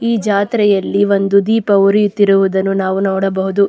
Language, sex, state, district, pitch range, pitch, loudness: Kannada, female, Karnataka, Dakshina Kannada, 195-205 Hz, 200 Hz, -13 LUFS